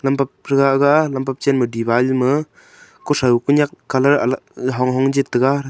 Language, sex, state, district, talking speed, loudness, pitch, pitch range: Wancho, male, Arunachal Pradesh, Longding, 180 wpm, -17 LUFS, 135 Hz, 130-145 Hz